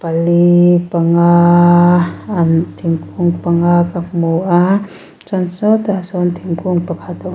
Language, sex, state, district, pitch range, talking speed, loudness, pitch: Mizo, female, Mizoram, Aizawl, 170-180 Hz, 100 wpm, -13 LUFS, 175 Hz